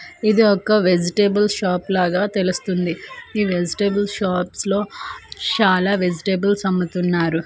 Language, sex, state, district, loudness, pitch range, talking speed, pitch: Telugu, female, Andhra Pradesh, Manyam, -19 LUFS, 180-205 Hz, 105 wpm, 190 Hz